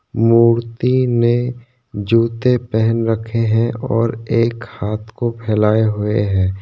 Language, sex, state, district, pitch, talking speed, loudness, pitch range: Hindi, male, Maharashtra, Chandrapur, 115 Hz, 120 wpm, -17 LUFS, 110-120 Hz